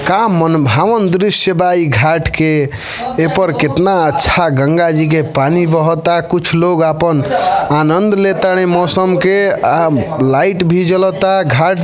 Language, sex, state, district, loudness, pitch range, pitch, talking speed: Bhojpuri, male, Uttar Pradesh, Varanasi, -12 LUFS, 155-185 Hz, 170 Hz, 150 wpm